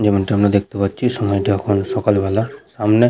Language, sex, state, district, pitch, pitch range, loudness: Bengali, male, West Bengal, Paschim Medinipur, 100 Hz, 100-110 Hz, -18 LUFS